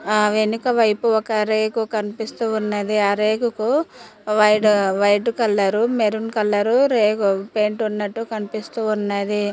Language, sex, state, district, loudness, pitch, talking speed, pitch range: Telugu, female, Telangana, Mahabubabad, -19 LUFS, 215 Hz, 115 wpm, 210-225 Hz